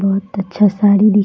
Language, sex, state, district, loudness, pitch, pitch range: Hindi, female, Bihar, Jamui, -13 LUFS, 205 Hz, 195-205 Hz